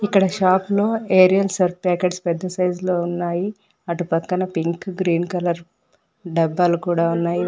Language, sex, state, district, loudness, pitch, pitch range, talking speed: Telugu, female, Telangana, Mahabubabad, -20 LUFS, 180 Hz, 170-185 Hz, 150 wpm